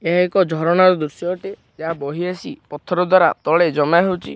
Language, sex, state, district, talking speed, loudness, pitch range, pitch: Odia, male, Odisha, Khordha, 190 wpm, -17 LUFS, 160-185 Hz, 175 Hz